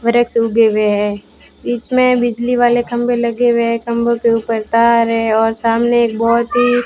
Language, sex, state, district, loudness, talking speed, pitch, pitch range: Hindi, female, Rajasthan, Bikaner, -14 LUFS, 200 wpm, 235 Hz, 230-240 Hz